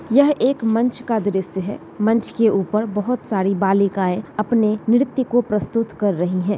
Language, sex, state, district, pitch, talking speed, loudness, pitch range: Hindi, male, Bihar, Bhagalpur, 215 Hz, 175 wpm, -19 LUFS, 195-235 Hz